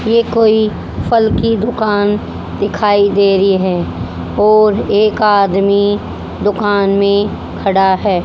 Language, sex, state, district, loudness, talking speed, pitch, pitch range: Hindi, female, Haryana, Jhajjar, -13 LUFS, 115 wpm, 205 Hz, 195-215 Hz